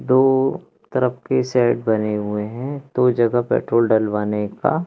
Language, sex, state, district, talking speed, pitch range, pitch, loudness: Hindi, male, Madhya Pradesh, Katni, 150 wpm, 110-130 Hz, 120 Hz, -19 LUFS